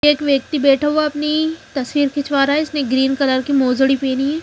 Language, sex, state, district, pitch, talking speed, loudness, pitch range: Hindi, female, Haryana, Charkhi Dadri, 280 Hz, 245 wpm, -17 LUFS, 270-295 Hz